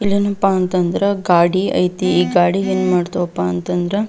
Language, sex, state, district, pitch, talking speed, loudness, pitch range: Kannada, female, Karnataka, Belgaum, 180 Hz, 160 wpm, -16 LUFS, 175-195 Hz